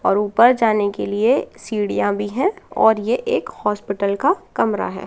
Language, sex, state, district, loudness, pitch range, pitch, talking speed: Hindi, female, Madhya Pradesh, Katni, -19 LUFS, 205-240 Hz, 210 Hz, 175 wpm